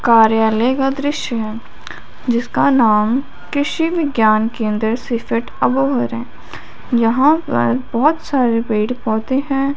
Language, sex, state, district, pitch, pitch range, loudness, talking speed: Hindi, female, Punjab, Fazilka, 235 Hz, 220-270 Hz, -17 LUFS, 110 wpm